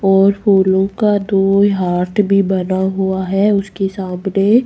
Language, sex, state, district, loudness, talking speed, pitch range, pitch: Hindi, female, Rajasthan, Jaipur, -15 LUFS, 140 wpm, 190-200 Hz, 195 Hz